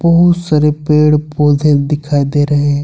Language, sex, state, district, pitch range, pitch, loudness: Hindi, male, Jharkhand, Ranchi, 145-150 Hz, 150 Hz, -12 LUFS